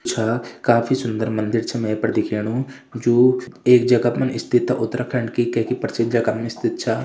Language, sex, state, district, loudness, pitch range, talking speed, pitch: Hindi, male, Uttarakhand, Uttarkashi, -20 LUFS, 115-125 Hz, 185 wpm, 120 Hz